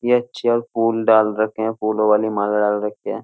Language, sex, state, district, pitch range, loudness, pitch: Hindi, male, Uttar Pradesh, Jyotiba Phule Nagar, 105-115 Hz, -19 LUFS, 110 Hz